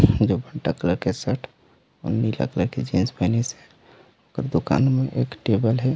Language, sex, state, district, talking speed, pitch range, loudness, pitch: Chhattisgarhi, male, Chhattisgarh, Raigarh, 180 wpm, 100-130 Hz, -23 LUFS, 115 Hz